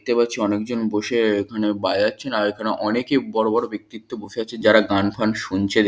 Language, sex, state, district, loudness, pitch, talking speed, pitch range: Bengali, male, West Bengal, Kolkata, -21 LUFS, 110 Hz, 185 wpm, 105-115 Hz